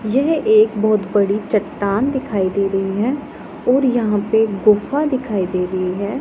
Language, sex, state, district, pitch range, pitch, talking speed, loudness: Hindi, female, Punjab, Pathankot, 200-255 Hz, 215 Hz, 165 wpm, -17 LUFS